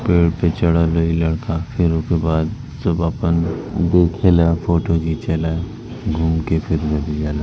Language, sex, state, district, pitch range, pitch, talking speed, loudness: Hindi, male, Uttar Pradesh, Varanasi, 80-85 Hz, 85 Hz, 155 wpm, -18 LUFS